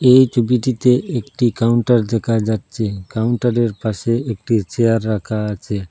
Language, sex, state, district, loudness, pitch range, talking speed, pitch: Bengali, male, Assam, Hailakandi, -18 LUFS, 110-120 Hz, 120 wpm, 115 Hz